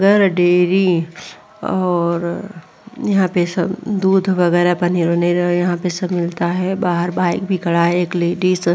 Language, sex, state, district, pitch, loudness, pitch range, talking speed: Hindi, female, Uttar Pradesh, Muzaffarnagar, 175 Hz, -17 LUFS, 175-185 Hz, 155 wpm